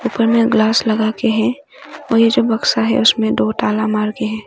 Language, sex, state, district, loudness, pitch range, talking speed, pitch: Hindi, female, Arunachal Pradesh, Longding, -15 LUFS, 215-230 Hz, 215 wpm, 220 Hz